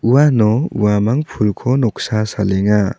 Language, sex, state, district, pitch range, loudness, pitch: Garo, male, Meghalaya, South Garo Hills, 105-130 Hz, -16 LUFS, 110 Hz